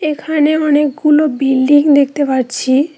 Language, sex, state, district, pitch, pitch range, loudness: Bengali, female, West Bengal, Cooch Behar, 290 Hz, 270-300 Hz, -12 LUFS